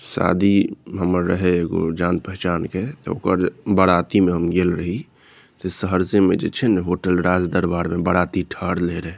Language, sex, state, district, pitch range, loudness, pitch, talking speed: Maithili, male, Bihar, Saharsa, 85-95 Hz, -20 LUFS, 90 Hz, 165 wpm